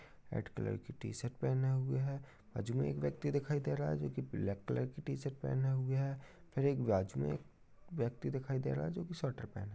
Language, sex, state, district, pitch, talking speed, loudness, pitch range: Hindi, male, Bihar, Jahanabad, 130 Hz, 235 wpm, -39 LUFS, 100-135 Hz